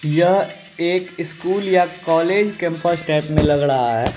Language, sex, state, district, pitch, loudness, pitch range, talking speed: Hindi, male, Bihar, Kishanganj, 170 Hz, -18 LUFS, 160-185 Hz, 160 wpm